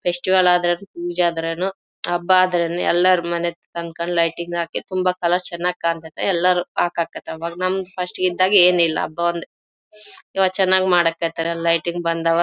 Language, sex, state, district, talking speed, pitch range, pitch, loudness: Kannada, female, Karnataka, Bellary, 165 wpm, 170-185 Hz, 175 Hz, -20 LUFS